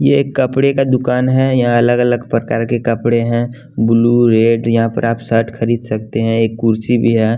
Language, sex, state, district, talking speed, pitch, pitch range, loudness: Hindi, male, Bihar, West Champaran, 210 wpm, 115 Hz, 115-125 Hz, -14 LUFS